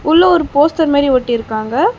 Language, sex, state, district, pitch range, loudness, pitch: Tamil, female, Tamil Nadu, Chennai, 250-335 Hz, -13 LUFS, 290 Hz